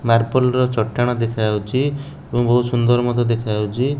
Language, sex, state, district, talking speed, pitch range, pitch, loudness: Odia, male, Odisha, Nuapada, 180 wpm, 115-125 Hz, 120 Hz, -19 LUFS